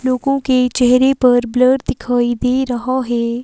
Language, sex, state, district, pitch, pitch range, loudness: Hindi, female, Himachal Pradesh, Shimla, 250 Hz, 245-260 Hz, -15 LUFS